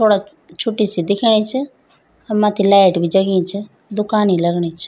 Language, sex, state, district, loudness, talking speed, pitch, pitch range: Garhwali, female, Uttarakhand, Tehri Garhwal, -16 LUFS, 185 wpm, 205 Hz, 190-215 Hz